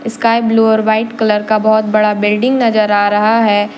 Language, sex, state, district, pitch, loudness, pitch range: Hindi, female, Jharkhand, Deoghar, 220 Hz, -12 LUFS, 210-230 Hz